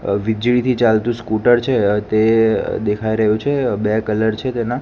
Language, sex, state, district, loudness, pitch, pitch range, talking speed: Gujarati, male, Gujarat, Gandhinagar, -17 LUFS, 110 Hz, 110-120 Hz, 160 wpm